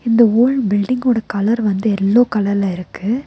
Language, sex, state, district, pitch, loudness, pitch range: Tamil, female, Tamil Nadu, Nilgiris, 220 Hz, -16 LUFS, 200-235 Hz